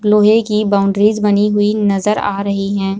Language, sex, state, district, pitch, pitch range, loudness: Hindi, female, Bihar, Supaul, 205 Hz, 200-210 Hz, -14 LUFS